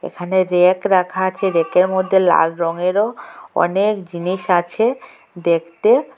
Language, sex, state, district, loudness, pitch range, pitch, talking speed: Bengali, female, Assam, Hailakandi, -17 LUFS, 175-190 Hz, 180 Hz, 115 wpm